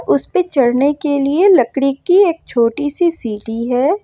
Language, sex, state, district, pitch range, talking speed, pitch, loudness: Hindi, female, Jharkhand, Ranchi, 245-345 Hz, 180 wpm, 280 Hz, -15 LUFS